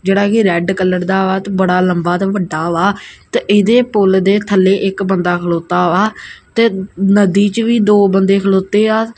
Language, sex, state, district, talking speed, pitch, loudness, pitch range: Punjabi, female, Punjab, Kapurthala, 190 wpm, 195 Hz, -13 LUFS, 185-205 Hz